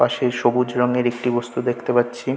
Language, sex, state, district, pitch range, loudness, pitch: Bengali, male, West Bengal, North 24 Parganas, 120-125 Hz, -20 LUFS, 120 Hz